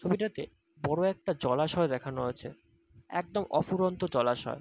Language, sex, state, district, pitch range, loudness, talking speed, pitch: Bengali, male, West Bengal, Dakshin Dinajpur, 125-185 Hz, -31 LUFS, 115 wpm, 155 Hz